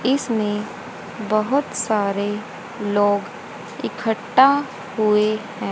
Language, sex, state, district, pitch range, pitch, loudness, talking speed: Hindi, female, Haryana, Rohtak, 210-250 Hz, 215 Hz, -21 LUFS, 75 wpm